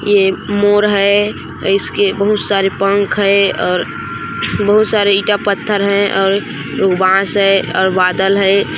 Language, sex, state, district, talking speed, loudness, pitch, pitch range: Chhattisgarhi, female, Chhattisgarh, Korba, 135 wpm, -13 LUFS, 200 Hz, 195-205 Hz